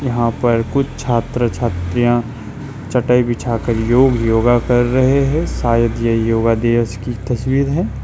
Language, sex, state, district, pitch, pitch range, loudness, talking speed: Hindi, male, West Bengal, Alipurduar, 120 Hz, 115-125 Hz, -16 LUFS, 140 wpm